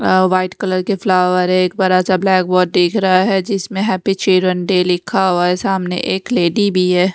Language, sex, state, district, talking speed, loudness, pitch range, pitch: Hindi, female, Odisha, Nuapada, 210 wpm, -15 LUFS, 180-190 Hz, 185 Hz